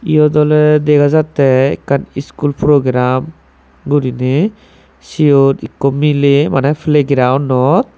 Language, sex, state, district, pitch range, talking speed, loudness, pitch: Chakma, male, Tripura, Dhalai, 130-150 Hz, 100 wpm, -12 LUFS, 140 Hz